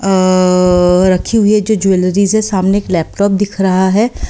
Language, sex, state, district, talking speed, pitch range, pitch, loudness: Hindi, female, Delhi, New Delhi, 165 wpm, 185-205 Hz, 195 Hz, -12 LUFS